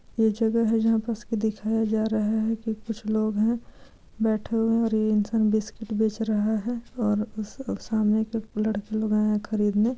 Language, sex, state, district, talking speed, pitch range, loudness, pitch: Hindi, female, Bihar, Darbhanga, 190 wpm, 215-225 Hz, -26 LUFS, 220 Hz